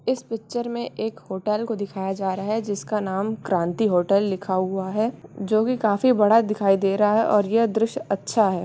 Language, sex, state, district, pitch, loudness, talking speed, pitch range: Hindi, female, Bihar, Samastipur, 210 Hz, -23 LUFS, 210 wpm, 195-225 Hz